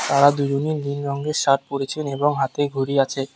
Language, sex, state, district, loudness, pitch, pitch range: Bengali, male, West Bengal, Alipurduar, -21 LUFS, 140 Hz, 140-145 Hz